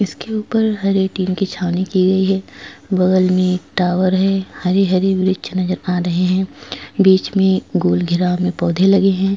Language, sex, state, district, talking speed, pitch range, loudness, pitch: Hindi, female, Goa, North and South Goa, 180 wpm, 180-195 Hz, -16 LUFS, 185 Hz